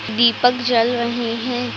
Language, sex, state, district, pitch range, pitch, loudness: Hindi, female, Uttar Pradesh, Budaun, 235-245 Hz, 240 Hz, -18 LUFS